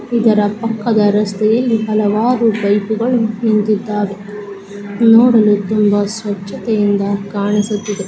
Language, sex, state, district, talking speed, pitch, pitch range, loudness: Kannada, female, Karnataka, Mysore, 75 wpm, 210 Hz, 205-225 Hz, -14 LUFS